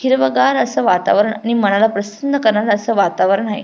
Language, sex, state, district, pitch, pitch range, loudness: Marathi, female, Maharashtra, Pune, 210 Hz, 200-230 Hz, -15 LUFS